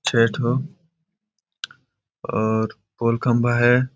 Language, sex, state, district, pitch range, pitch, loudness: Hindi, male, Chhattisgarh, Balrampur, 115-150 Hz, 120 Hz, -21 LUFS